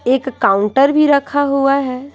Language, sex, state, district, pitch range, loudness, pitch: Hindi, female, Bihar, Patna, 255-280 Hz, -14 LUFS, 275 Hz